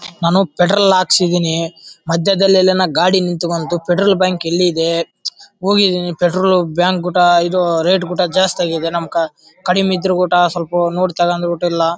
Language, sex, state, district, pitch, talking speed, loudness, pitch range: Kannada, male, Karnataka, Bellary, 175 Hz, 135 wpm, -15 LUFS, 170-185 Hz